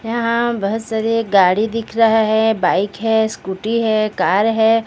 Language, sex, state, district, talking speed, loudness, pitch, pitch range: Hindi, female, Odisha, Sambalpur, 175 wpm, -16 LUFS, 220 Hz, 205-225 Hz